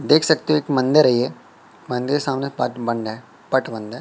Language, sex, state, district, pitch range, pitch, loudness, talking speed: Hindi, male, Madhya Pradesh, Katni, 120-145 Hz, 130 Hz, -20 LUFS, 225 wpm